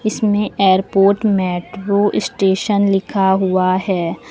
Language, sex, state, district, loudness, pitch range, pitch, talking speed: Hindi, female, Uttar Pradesh, Lucknow, -16 LUFS, 190-205 Hz, 195 Hz, 95 wpm